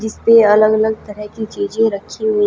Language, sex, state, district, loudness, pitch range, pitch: Hindi, female, Haryana, Jhajjar, -14 LUFS, 210-225 Hz, 220 Hz